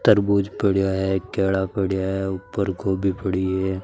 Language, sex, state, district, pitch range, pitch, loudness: Marwari, male, Rajasthan, Nagaur, 95-100 Hz, 95 Hz, -22 LUFS